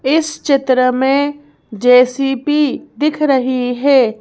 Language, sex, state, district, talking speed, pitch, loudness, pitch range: Hindi, female, Madhya Pradesh, Bhopal, 100 wpm, 270 Hz, -14 LUFS, 255-290 Hz